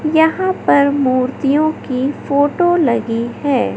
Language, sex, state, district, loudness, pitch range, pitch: Hindi, male, Madhya Pradesh, Katni, -15 LUFS, 255-315 Hz, 280 Hz